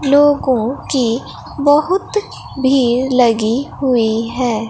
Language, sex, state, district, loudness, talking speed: Hindi, female, Bihar, Katihar, -15 LUFS, 90 wpm